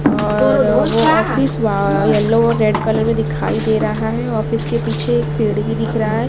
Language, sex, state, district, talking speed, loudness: Hindi, female, Maharashtra, Mumbai Suburban, 190 wpm, -16 LUFS